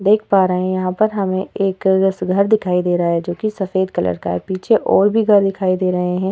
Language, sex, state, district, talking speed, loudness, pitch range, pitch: Hindi, female, Uttar Pradesh, Etah, 245 wpm, -17 LUFS, 180-200 Hz, 190 Hz